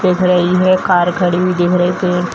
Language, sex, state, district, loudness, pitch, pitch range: Hindi, female, Bihar, Jamui, -13 LUFS, 180 Hz, 180-185 Hz